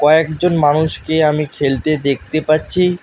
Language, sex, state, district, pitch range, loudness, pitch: Bengali, male, West Bengal, Alipurduar, 150-160 Hz, -15 LUFS, 155 Hz